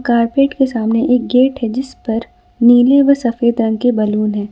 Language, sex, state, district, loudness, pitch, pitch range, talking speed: Hindi, female, Jharkhand, Ranchi, -14 LUFS, 240 Hz, 225-260 Hz, 200 wpm